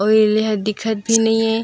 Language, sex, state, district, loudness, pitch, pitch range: Chhattisgarhi, female, Chhattisgarh, Raigarh, -17 LUFS, 220 Hz, 215-225 Hz